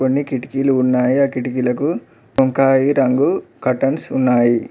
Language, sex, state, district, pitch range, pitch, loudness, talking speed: Telugu, male, Telangana, Mahabubabad, 125-135 Hz, 130 Hz, -17 LUFS, 115 wpm